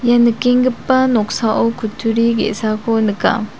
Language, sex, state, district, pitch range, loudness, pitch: Garo, female, Meghalaya, South Garo Hills, 220-240 Hz, -16 LUFS, 230 Hz